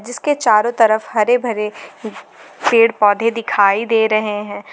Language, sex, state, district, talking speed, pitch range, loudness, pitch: Hindi, female, Jharkhand, Garhwa, 140 wpm, 210-230 Hz, -15 LUFS, 220 Hz